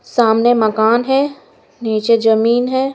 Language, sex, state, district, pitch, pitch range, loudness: Hindi, female, Bihar, West Champaran, 235 Hz, 220-260 Hz, -14 LUFS